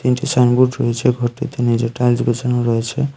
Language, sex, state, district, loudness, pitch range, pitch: Bengali, male, Tripura, Unakoti, -17 LUFS, 120-125 Hz, 125 Hz